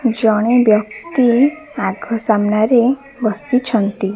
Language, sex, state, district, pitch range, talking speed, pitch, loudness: Odia, female, Odisha, Khordha, 215-255 Hz, 70 wpm, 235 Hz, -15 LUFS